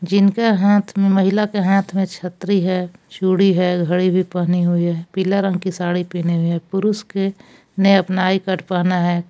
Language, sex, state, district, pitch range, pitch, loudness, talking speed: Hindi, female, Jharkhand, Palamu, 180-195 Hz, 185 Hz, -18 LUFS, 200 wpm